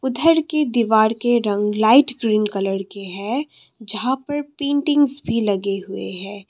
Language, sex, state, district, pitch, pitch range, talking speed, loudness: Hindi, female, Assam, Kamrup Metropolitan, 230 Hz, 205-280 Hz, 155 wpm, -19 LUFS